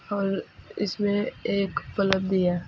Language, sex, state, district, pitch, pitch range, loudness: Hindi, female, Uttar Pradesh, Saharanpur, 195 Hz, 190-205 Hz, -27 LUFS